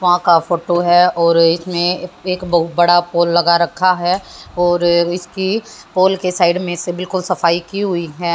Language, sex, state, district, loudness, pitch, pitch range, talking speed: Hindi, female, Haryana, Jhajjar, -15 LUFS, 175 Hz, 170-185 Hz, 180 wpm